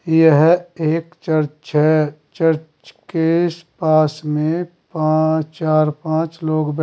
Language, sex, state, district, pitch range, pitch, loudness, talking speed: Hindi, male, Uttar Pradesh, Saharanpur, 155-165 Hz, 155 Hz, -18 LUFS, 125 wpm